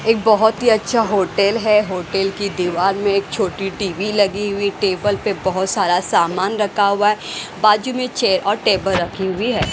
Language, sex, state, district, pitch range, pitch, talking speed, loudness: Hindi, female, Haryana, Rohtak, 190-210 Hz, 200 Hz, 190 wpm, -17 LUFS